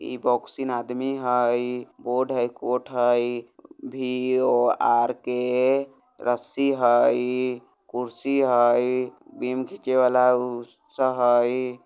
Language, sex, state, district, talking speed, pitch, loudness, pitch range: Bajjika, male, Bihar, Vaishali, 110 wpm, 125 Hz, -23 LUFS, 120-130 Hz